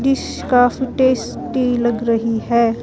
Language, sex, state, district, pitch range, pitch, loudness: Hindi, female, Himachal Pradesh, Shimla, 235-260 Hz, 245 Hz, -17 LUFS